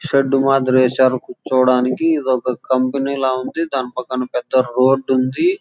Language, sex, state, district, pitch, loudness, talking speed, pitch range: Telugu, male, Andhra Pradesh, Chittoor, 130 Hz, -17 LUFS, 140 wpm, 130-135 Hz